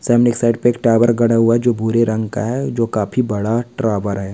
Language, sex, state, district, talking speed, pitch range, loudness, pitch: Hindi, male, Uttar Pradesh, Etah, 260 wpm, 110-120 Hz, -16 LUFS, 115 Hz